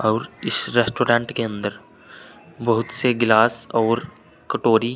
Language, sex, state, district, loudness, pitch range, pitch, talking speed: Hindi, male, Uttar Pradesh, Saharanpur, -21 LUFS, 110-120 Hz, 115 Hz, 120 wpm